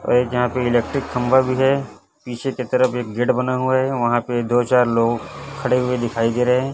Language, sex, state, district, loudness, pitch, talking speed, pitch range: Hindi, male, Chhattisgarh, Raipur, -19 LUFS, 125 Hz, 240 wpm, 120-130 Hz